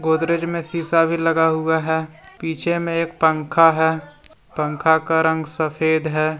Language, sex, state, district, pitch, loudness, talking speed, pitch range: Hindi, male, Jharkhand, Deoghar, 160 Hz, -19 LUFS, 170 wpm, 160-165 Hz